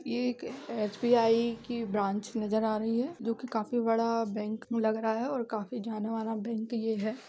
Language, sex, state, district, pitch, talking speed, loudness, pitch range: Hindi, female, Uttar Pradesh, Budaun, 225 Hz, 190 wpm, -31 LUFS, 220-235 Hz